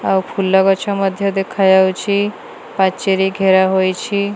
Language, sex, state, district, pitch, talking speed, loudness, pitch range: Odia, female, Odisha, Malkangiri, 190 Hz, 125 wpm, -15 LUFS, 190-200 Hz